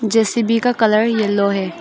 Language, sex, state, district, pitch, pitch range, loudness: Hindi, female, Arunachal Pradesh, Longding, 220 Hz, 205-230 Hz, -16 LUFS